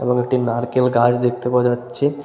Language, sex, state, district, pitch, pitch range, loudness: Bengali, male, West Bengal, Paschim Medinipur, 125 Hz, 120-125 Hz, -18 LUFS